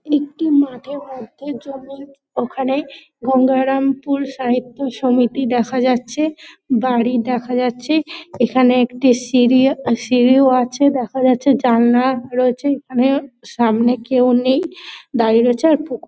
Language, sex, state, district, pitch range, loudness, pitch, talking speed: Bengali, female, West Bengal, Dakshin Dinajpur, 245-280 Hz, -16 LUFS, 260 Hz, 115 wpm